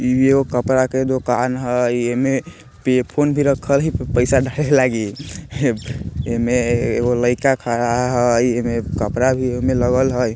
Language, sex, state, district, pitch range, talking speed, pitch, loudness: Bajjika, male, Bihar, Vaishali, 120-130 Hz, 145 wpm, 125 Hz, -18 LUFS